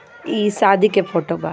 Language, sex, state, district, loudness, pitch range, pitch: Bhojpuri, female, Jharkhand, Palamu, -17 LUFS, 195-215 Hz, 200 Hz